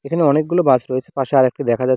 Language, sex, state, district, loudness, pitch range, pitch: Bengali, male, West Bengal, Cooch Behar, -17 LUFS, 130-150 Hz, 135 Hz